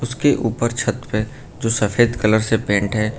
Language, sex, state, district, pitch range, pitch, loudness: Hindi, male, Uttar Pradesh, Lucknow, 110-120 Hz, 115 Hz, -19 LUFS